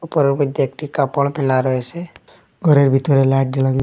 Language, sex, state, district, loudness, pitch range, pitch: Bengali, male, Assam, Hailakandi, -17 LUFS, 135-145 Hz, 140 Hz